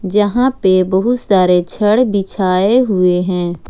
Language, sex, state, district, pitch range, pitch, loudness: Hindi, female, Jharkhand, Ranchi, 185-215 Hz, 190 Hz, -13 LUFS